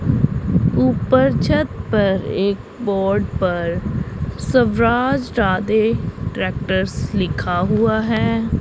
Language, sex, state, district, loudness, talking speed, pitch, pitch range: Hindi, female, Punjab, Pathankot, -18 LUFS, 85 wpm, 200 Hz, 185-225 Hz